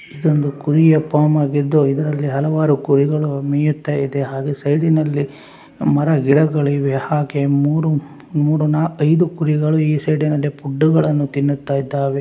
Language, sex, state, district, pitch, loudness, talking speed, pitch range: Kannada, male, Karnataka, Raichur, 145 Hz, -17 LUFS, 115 wpm, 140-155 Hz